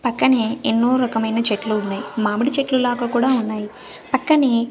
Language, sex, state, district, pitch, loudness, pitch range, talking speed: Telugu, female, Andhra Pradesh, Sri Satya Sai, 240 Hz, -19 LUFS, 220-255 Hz, 140 wpm